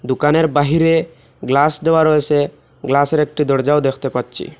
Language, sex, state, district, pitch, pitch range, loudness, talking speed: Bengali, male, Assam, Hailakandi, 145 Hz, 135-155 Hz, -16 LUFS, 130 wpm